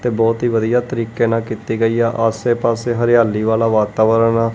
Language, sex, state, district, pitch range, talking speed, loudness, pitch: Punjabi, male, Punjab, Kapurthala, 115-120 Hz, 185 wpm, -16 LUFS, 115 Hz